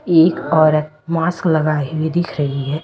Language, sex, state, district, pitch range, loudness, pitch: Hindi, female, Delhi, New Delhi, 155-165 Hz, -17 LUFS, 155 Hz